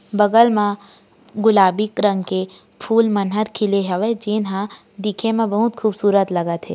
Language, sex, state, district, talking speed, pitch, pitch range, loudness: Hindi, female, Chhattisgarh, Raigarh, 160 wpm, 210 Hz, 195-215 Hz, -18 LUFS